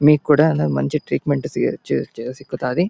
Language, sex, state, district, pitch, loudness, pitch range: Telugu, male, Andhra Pradesh, Anantapur, 150 Hz, -20 LUFS, 100-155 Hz